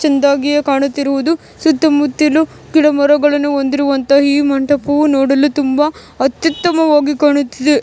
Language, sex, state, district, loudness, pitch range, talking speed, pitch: Kannada, female, Karnataka, Mysore, -13 LUFS, 280-300 Hz, 100 wpm, 290 Hz